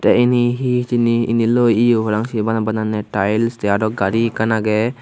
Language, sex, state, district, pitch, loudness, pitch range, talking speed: Chakma, male, Tripura, Unakoti, 115 Hz, -17 LUFS, 110-120 Hz, 165 wpm